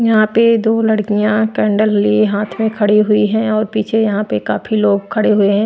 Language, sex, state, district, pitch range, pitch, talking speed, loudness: Hindi, female, Punjab, Pathankot, 210-220 Hz, 215 Hz, 210 wpm, -14 LUFS